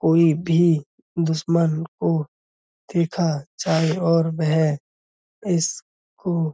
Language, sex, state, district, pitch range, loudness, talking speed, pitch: Hindi, male, Uttar Pradesh, Budaun, 150-170 Hz, -21 LUFS, 90 wpm, 160 Hz